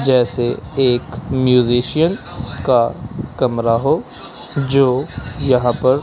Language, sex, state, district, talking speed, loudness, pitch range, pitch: Hindi, male, Punjab, Kapurthala, 90 wpm, -17 LUFS, 120-135 Hz, 130 Hz